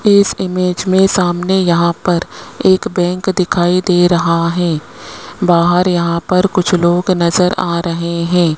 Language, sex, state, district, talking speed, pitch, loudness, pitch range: Hindi, male, Rajasthan, Jaipur, 145 wpm, 180 Hz, -13 LUFS, 170-185 Hz